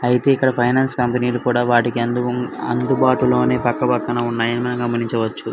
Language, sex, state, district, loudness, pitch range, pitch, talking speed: Telugu, male, Andhra Pradesh, Anantapur, -18 LUFS, 120-125 Hz, 120 Hz, 140 wpm